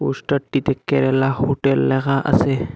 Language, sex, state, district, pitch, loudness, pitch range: Bengali, male, Assam, Hailakandi, 135 Hz, -19 LUFS, 135-140 Hz